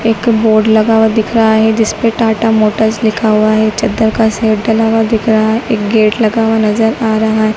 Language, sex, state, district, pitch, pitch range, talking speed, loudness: Hindi, female, Madhya Pradesh, Dhar, 220 Hz, 220-225 Hz, 245 wpm, -11 LUFS